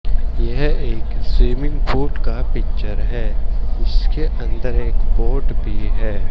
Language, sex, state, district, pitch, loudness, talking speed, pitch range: Hindi, male, Haryana, Jhajjar, 115 Hz, -23 LUFS, 125 wpm, 105-125 Hz